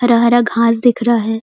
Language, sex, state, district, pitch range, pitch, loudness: Hindi, female, Chhattisgarh, Korba, 230-240 Hz, 235 Hz, -13 LUFS